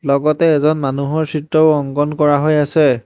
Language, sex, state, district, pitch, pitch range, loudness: Assamese, male, Assam, Hailakandi, 150 Hz, 145-155 Hz, -15 LUFS